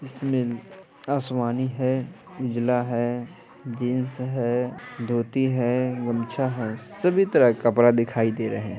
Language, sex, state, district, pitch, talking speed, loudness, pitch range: Hindi, male, Bihar, Vaishali, 125 Hz, 130 wpm, -24 LUFS, 120-130 Hz